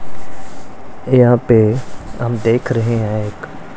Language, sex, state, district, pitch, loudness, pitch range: Hindi, male, Punjab, Pathankot, 115 Hz, -15 LUFS, 110-120 Hz